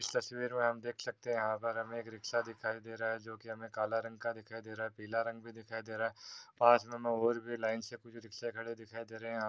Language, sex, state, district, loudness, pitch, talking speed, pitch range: Hindi, male, Uttar Pradesh, Varanasi, -37 LUFS, 115 Hz, 285 wpm, 110-115 Hz